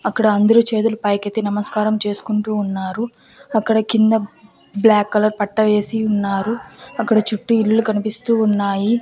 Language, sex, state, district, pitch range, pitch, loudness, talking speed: Telugu, female, Andhra Pradesh, Annamaya, 205-225 Hz, 215 Hz, -18 LUFS, 125 wpm